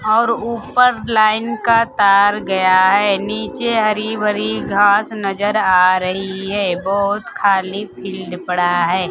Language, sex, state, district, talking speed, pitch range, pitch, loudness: Hindi, female, Bihar, Kaimur, 130 wpm, 190-215 Hz, 200 Hz, -16 LUFS